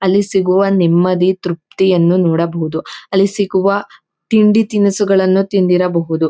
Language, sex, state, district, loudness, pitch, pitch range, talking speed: Kannada, female, Karnataka, Mysore, -14 LUFS, 190 Hz, 175-195 Hz, 95 wpm